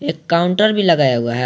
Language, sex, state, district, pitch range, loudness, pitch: Hindi, male, Jharkhand, Garhwa, 125-185 Hz, -15 LUFS, 170 Hz